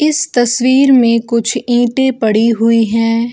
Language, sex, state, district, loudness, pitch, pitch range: Hindi, female, Bihar, Gopalganj, -12 LUFS, 240 Hz, 230-260 Hz